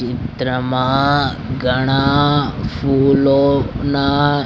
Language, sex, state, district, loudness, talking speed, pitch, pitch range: Gujarati, male, Gujarat, Gandhinagar, -16 LUFS, 40 wpm, 135 Hz, 130-140 Hz